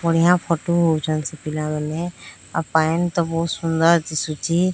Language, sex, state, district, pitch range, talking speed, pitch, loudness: Odia, female, Odisha, Sambalpur, 155-170 Hz, 150 wpm, 165 Hz, -21 LUFS